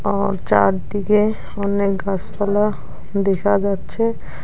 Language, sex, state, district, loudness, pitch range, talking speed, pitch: Bengali, female, West Bengal, Alipurduar, -19 LUFS, 195-205 Hz, 80 wpm, 200 Hz